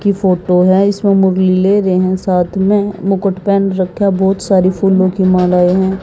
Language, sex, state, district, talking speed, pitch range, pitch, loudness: Hindi, female, Haryana, Jhajjar, 150 wpm, 185-195 Hz, 190 Hz, -12 LUFS